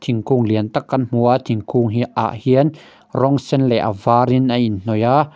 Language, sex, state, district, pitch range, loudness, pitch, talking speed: Mizo, male, Mizoram, Aizawl, 115-135 Hz, -17 LUFS, 125 Hz, 200 wpm